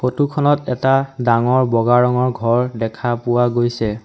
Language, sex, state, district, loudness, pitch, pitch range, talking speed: Assamese, male, Assam, Sonitpur, -17 LUFS, 120 Hz, 120-130 Hz, 135 wpm